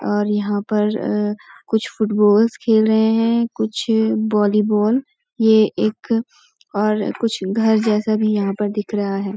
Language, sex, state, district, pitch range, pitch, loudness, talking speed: Hindi, female, Uttarakhand, Uttarkashi, 210-220 Hz, 215 Hz, -18 LUFS, 140 wpm